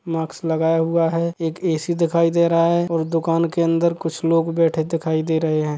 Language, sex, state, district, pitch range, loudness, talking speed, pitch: Hindi, male, Chhattisgarh, Sukma, 160-170 Hz, -20 LUFS, 220 wpm, 165 Hz